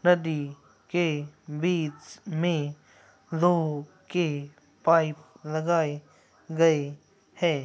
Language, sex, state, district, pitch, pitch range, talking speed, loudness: Hindi, male, Uttar Pradesh, Muzaffarnagar, 160 Hz, 145-170 Hz, 80 wpm, -27 LUFS